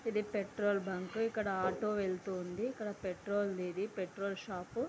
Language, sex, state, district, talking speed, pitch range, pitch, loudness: Telugu, female, Andhra Pradesh, Anantapur, 160 wpm, 185-210 Hz, 200 Hz, -38 LUFS